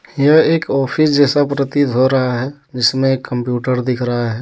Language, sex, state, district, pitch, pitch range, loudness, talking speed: Hindi, male, Jharkhand, Deoghar, 135 Hz, 125-145 Hz, -15 LUFS, 175 wpm